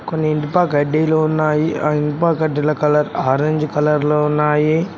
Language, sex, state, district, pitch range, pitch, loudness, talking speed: Telugu, male, Telangana, Mahabubabad, 150-155 Hz, 150 Hz, -17 LUFS, 145 wpm